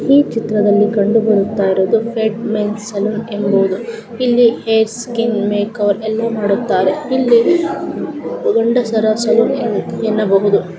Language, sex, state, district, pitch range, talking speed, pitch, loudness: Kannada, female, Karnataka, Chamarajanagar, 205-230 Hz, 120 wpm, 220 Hz, -15 LUFS